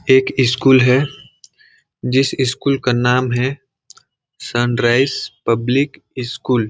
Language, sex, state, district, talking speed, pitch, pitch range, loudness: Hindi, male, Chhattisgarh, Balrampur, 115 wpm, 130 Hz, 125-135 Hz, -16 LUFS